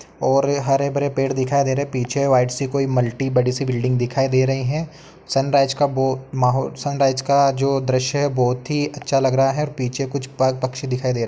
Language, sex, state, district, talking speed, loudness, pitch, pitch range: Hindi, male, Uttar Pradesh, Etah, 225 wpm, -20 LUFS, 135 Hz, 130-140 Hz